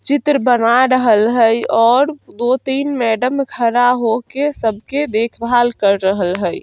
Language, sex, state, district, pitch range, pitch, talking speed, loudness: Bajjika, female, Bihar, Vaishali, 225-270 Hz, 240 Hz, 145 wpm, -15 LUFS